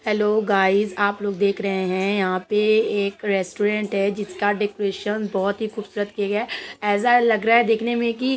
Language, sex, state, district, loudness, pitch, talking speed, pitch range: Hindi, female, Uttar Pradesh, Budaun, -21 LUFS, 205 Hz, 200 wpm, 200-215 Hz